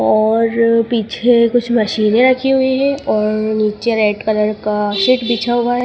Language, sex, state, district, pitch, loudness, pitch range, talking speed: Hindi, female, Madhya Pradesh, Dhar, 230 Hz, -14 LUFS, 215-240 Hz, 165 wpm